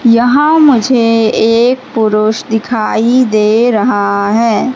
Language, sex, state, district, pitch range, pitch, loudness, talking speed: Hindi, female, Madhya Pradesh, Katni, 220-250 Hz, 230 Hz, -10 LUFS, 100 wpm